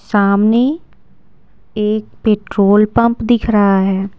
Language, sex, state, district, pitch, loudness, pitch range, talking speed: Hindi, female, Bihar, Patna, 215 Hz, -14 LUFS, 200-230 Hz, 100 wpm